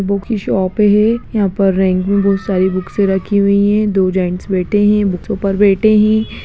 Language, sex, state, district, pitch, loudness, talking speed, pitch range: Hindi, male, Bihar, Gaya, 200 Hz, -14 LUFS, 205 wpm, 190-210 Hz